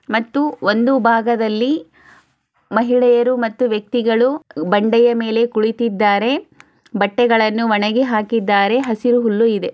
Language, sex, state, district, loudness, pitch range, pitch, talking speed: Kannada, female, Karnataka, Chamarajanagar, -16 LUFS, 215-245 Hz, 230 Hz, 90 wpm